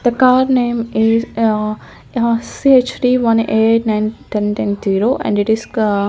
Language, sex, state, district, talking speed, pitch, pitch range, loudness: English, female, Chandigarh, Chandigarh, 150 wpm, 225 Hz, 215-245 Hz, -15 LUFS